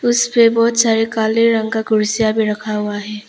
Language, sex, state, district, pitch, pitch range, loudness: Hindi, female, Arunachal Pradesh, Papum Pare, 220 Hz, 215-230 Hz, -15 LUFS